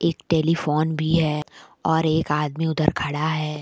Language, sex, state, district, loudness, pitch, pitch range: Hindi, female, Jharkhand, Deoghar, -22 LUFS, 155 Hz, 150-160 Hz